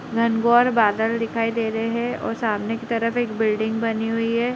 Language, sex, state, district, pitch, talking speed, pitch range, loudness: Hindi, female, Bihar, Gopalganj, 230 Hz, 210 wpm, 225-230 Hz, -22 LUFS